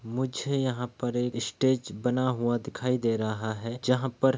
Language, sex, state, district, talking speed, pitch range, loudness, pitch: Hindi, male, Bihar, Begusarai, 190 wpm, 115-130 Hz, -29 LUFS, 125 Hz